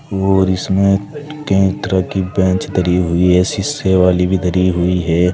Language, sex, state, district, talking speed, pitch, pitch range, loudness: Hindi, male, Uttar Pradesh, Saharanpur, 170 wpm, 95 Hz, 90-95 Hz, -15 LUFS